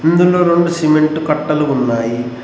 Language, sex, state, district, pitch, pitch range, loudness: Telugu, male, Telangana, Mahabubabad, 155 Hz, 125-170 Hz, -14 LUFS